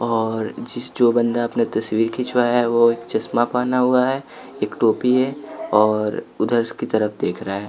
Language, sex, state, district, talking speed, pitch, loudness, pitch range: Hindi, male, Bihar, West Champaran, 185 wpm, 120 Hz, -20 LUFS, 110-125 Hz